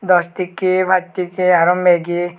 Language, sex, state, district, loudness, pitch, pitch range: Chakma, male, Tripura, West Tripura, -16 LUFS, 180 Hz, 175-185 Hz